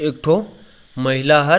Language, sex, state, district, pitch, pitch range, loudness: Chhattisgarhi, male, Chhattisgarh, Raigarh, 150 Hz, 130-165 Hz, -18 LUFS